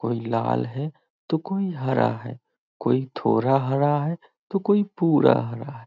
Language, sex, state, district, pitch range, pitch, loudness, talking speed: Hindi, male, Bihar, Muzaffarpur, 120-165 Hz, 140 Hz, -23 LUFS, 165 wpm